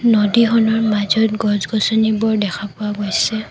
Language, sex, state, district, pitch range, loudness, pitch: Assamese, female, Assam, Kamrup Metropolitan, 210-220 Hz, -17 LUFS, 220 Hz